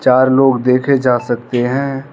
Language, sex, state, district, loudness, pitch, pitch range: Hindi, male, Arunachal Pradesh, Lower Dibang Valley, -14 LUFS, 130 Hz, 125-135 Hz